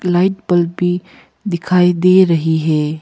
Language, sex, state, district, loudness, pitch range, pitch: Hindi, female, Arunachal Pradesh, Papum Pare, -14 LUFS, 165-180 Hz, 175 Hz